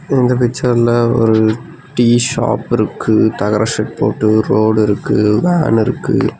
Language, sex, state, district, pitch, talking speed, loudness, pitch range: Tamil, male, Tamil Nadu, Nilgiris, 115 Hz, 120 wpm, -14 LUFS, 110-125 Hz